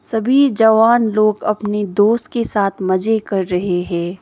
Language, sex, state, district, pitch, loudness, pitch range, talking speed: Hindi, female, Sikkim, Gangtok, 210 Hz, -16 LUFS, 190-225 Hz, 155 wpm